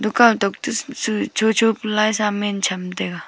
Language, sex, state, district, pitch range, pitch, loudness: Wancho, female, Arunachal Pradesh, Longding, 200-225 Hz, 215 Hz, -19 LUFS